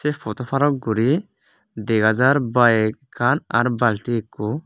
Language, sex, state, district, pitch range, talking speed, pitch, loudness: Chakma, male, Tripura, West Tripura, 110-140 Hz, 130 wpm, 120 Hz, -20 LUFS